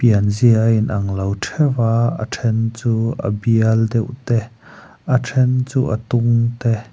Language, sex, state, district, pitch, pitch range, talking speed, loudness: Mizo, male, Mizoram, Aizawl, 115 Hz, 110-120 Hz, 175 wpm, -18 LUFS